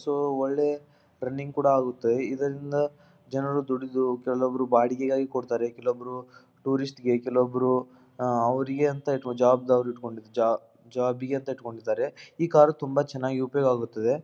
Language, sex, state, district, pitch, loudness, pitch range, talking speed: Kannada, male, Karnataka, Dharwad, 130 Hz, -27 LUFS, 125-140 Hz, 120 wpm